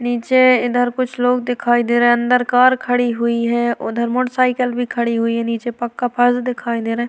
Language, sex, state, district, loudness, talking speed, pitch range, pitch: Hindi, female, Uttar Pradesh, Varanasi, -17 LUFS, 220 wpm, 235-250 Hz, 245 Hz